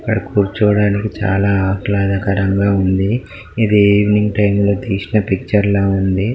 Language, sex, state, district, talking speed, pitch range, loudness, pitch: Telugu, male, Telangana, Karimnagar, 125 wpm, 95-105 Hz, -15 LUFS, 100 Hz